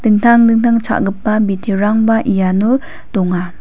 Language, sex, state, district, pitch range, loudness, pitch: Garo, female, Meghalaya, West Garo Hills, 195-230 Hz, -13 LUFS, 215 Hz